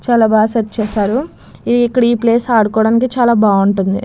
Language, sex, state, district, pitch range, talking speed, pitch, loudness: Telugu, female, Andhra Pradesh, Krishna, 215-240 Hz, 150 wpm, 230 Hz, -13 LUFS